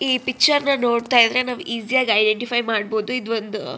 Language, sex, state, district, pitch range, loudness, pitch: Kannada, female, Karnataka, Shimoga, 225-255 Hz, -19 LUFS, 240 Hz